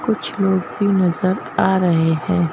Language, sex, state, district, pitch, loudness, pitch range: Hindi, female, Madhya Pradesh, Bhopal, 185 Hz, -18 LUFS, 175-195 Hz